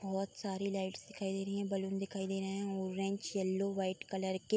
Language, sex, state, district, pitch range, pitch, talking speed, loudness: Hindi, female, Uttar Pradesh, Budaun, 190-195 Hz, 195 Hz, 210 wpm, -38 LUFS